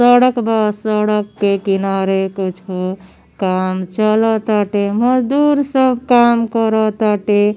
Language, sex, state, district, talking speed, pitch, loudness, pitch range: Bhojpuri, female, Uttar Pradesh, Gorakhpur, 95 wpm, 210 Hz, -15 LUFS, 195-235 Hz